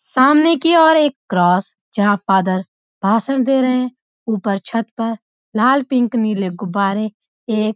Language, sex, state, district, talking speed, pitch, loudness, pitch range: Hindi, female, Uttarakhand, Uttarkashi, 155 wpm, 225 Hz, -16 LUFS, 200-260 Hz